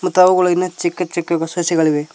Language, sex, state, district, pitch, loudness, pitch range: Kannada, male, Karnataka, Koppal, 175 Hz, -16 LUFS, 165-180 Hz